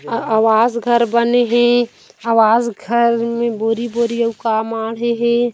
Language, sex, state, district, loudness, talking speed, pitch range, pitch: Hindi, female, Chhattisgarh, Kabirdham, -16 LUFS, 130 wpm, 225-235 Hz, 235 Hz